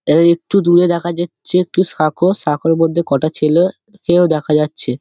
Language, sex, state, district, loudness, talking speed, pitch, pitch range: Bengali, male, West Bengal, Dakshin Dinajpur, -15 LUFS, 170 wpm, 170 Hz, 155-180 Hz